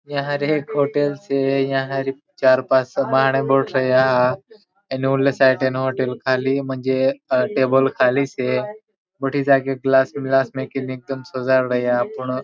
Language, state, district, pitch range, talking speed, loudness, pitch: Bhili, Maharashtra, Dhule, 130-140 Hz, 135 wpm, -19 LUFS, 135 Hz